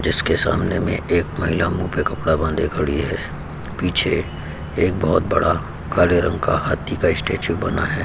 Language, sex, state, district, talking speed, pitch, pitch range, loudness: Hindi, male, Uttar Pradesh, Hamirpur, 170 wpm, 85 Hz, 80-90 Hz, -20 LUFS